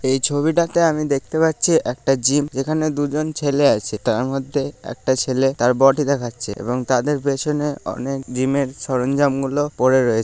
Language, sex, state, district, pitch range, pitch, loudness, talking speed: Bengali, male, West Bengal, Kolkata, 130-150 Hz, 135 Hz, -19 LUFS, 160 wpm